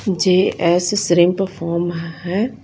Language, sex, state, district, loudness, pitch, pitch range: Hindi, female, Punjab, Fazilka, -17 LUFS, 175 Hz, 170-195 Hz